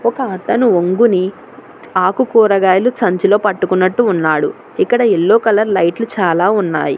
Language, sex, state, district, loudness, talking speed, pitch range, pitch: Telugu, female, Telangana, Hyderabad, -13 LUFS, 110 wpm, 185-235 Hz, 205 Hz